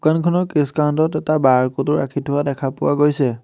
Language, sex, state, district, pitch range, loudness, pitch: Assamese, male, Assam, Hailakandi, 135-155 Hz, -18 LUFS, 145 Hz